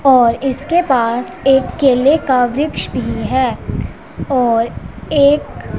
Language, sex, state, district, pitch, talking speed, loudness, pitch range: Hindi, female, Punjab, Pathankot, 265 Hz, 115 wpm, -15 LUFS, 245-285 Hz